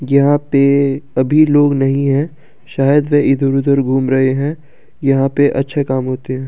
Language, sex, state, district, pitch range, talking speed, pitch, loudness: Hindi, male, Delhi, New Delhi, 135-145 Hz, 165 wpm, 140 Hz, -14 LUFS